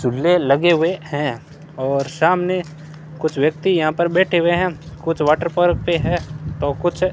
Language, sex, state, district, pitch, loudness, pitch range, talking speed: Hindi, male, Rajasthan, Bikaner, 160 Hz, -18 LUFS, 150-175 Hz, 175 wpm